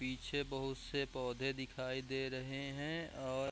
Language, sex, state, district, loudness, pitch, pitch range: Hindi, male, Chhattisgarh, Raigarh, -42 LUFS, 135 Hz, 130-140 Hz